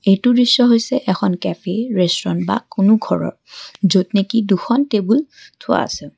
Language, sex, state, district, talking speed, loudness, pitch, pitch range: Assamese, female, Assam, Kamrup Metropolitan, 145 wpm, -17 LUFS, 210 Hz, 190-245 Hz